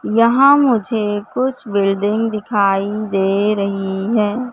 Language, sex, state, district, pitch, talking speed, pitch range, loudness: Hindi, female, Madhya Pradesh, Katni, 210 Hz, 105 wpm, 200-230 Hz, -16 LUFS